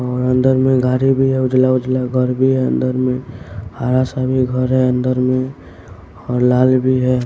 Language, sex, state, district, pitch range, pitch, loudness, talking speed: Hindi, male, Bihar, West Champaran, 125-130 Hz, 130 Hz, -16 LUFS, 200 wpm